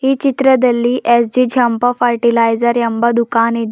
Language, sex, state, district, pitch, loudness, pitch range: Kannada, female, Karnataka, Bidar, 240 Hz, -13 LUFS, 235-250 Hz